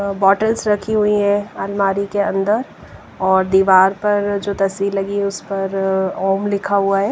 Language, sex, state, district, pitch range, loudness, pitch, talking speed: Hindi, female, Punjab, Pathankot, 195-205 Hz, -17 LUFS, 200 Hz, 185 wpm